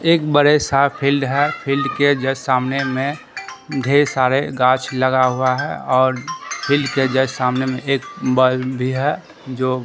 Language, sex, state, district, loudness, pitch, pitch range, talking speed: Hindi, male, Bihar, Katihar, -18 LUFS, 135 Hz, 130-140 Hz, 160 wpm